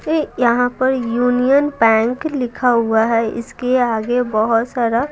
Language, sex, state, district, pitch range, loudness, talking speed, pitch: Hindi, female, Bihar, Patna, 230-255 Hz, -17 LUFS, 130 wpm, 245 Hz